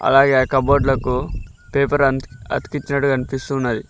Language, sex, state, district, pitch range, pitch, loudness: Telugu, male, Telangana, Mahabubabad, 125-140 Hz, 135 Hz, -19 LUFS